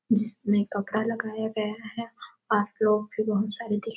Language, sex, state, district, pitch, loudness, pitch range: Hindi, female, Chhattisgarh, Sarguja, 215 Hz, -28 LUFS, 210-225 Hz